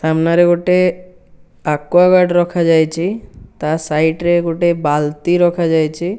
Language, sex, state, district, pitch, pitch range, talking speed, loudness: Odia, male, Odisha, Nuapada, 170 Hz, 160-175 Hz, 95 wpm, -14 LUFS